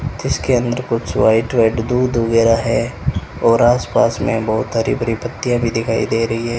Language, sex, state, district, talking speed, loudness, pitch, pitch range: Hindi, male, Rajasthan, Bikaner, 190 wpm, -17 LUFS, 115 Hz, 115-120 Hz